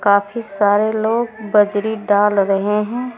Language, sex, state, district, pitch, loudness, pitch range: Hindi, female, Uttar Pradesh, Saharanpur, 210 Hz, -17 LUFS, 205-220 Hz